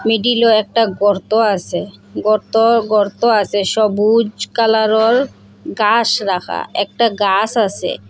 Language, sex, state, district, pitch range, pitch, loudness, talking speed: Bengali, female, Assam, Hailakandi, 205-230 Hz, 215 Hz, -15 LUFS, 105 wpm